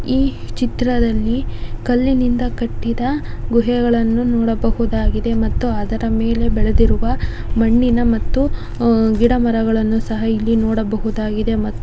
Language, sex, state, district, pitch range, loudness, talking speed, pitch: Kannada, female, Karnataka, Dakshina Kannada, 220-240 Hz, -18 LUFS, 90 wpm, 230 Hz